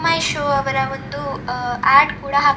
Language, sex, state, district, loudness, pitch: Kannada, female, Karnataka, Dakshina Kannada, -18 LUFS, 275 Hz